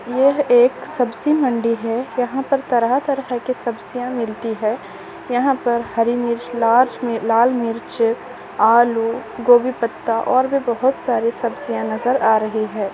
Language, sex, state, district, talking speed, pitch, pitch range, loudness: Hindi, female, Maharashtra, Nagpur, 150 wpm, 240 Hz, 230-255 Hz, -18 LUFS